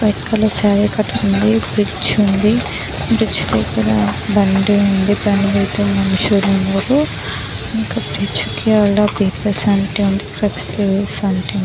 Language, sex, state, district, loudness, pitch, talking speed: Telugu, female, Telangana, Nalgonda, -16 LUFS, 200 Hz, 95 wpm